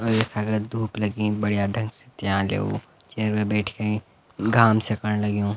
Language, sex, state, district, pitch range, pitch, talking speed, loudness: Garhwali, male, Uttarakhand, Uttarkashi, 105-110 Hz, 105 Hz, 170 wpm, -24 LUFS